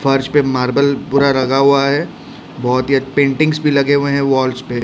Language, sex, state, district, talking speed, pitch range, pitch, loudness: Hindi, male, Odisha, Khordha, 200 wpm, 130-140 Hz, 140 Hz, -14 LUFS